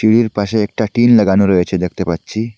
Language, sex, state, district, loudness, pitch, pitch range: Bengali, male, Assam, Hailakandi, -14 LUFS, 105 Hz, 95-110 Hz